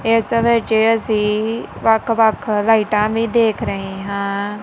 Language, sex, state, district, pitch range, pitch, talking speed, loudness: Punjabi, female, Punjab, Kapurthala, 210-225 Hz, 220 Hz, 130 wpm, -17 LUFS